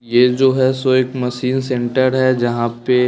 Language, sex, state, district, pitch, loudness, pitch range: Hindi, male, Bihar, West Champaran, 125 Hz, -16 LUFS, 120-130 Hz